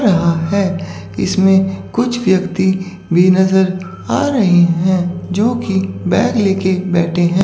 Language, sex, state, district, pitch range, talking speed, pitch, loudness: Hindi, female, Chandigarh, Chandigarh, 180-195 Hz, 135 wpm, 190 Hz, -15 LUFS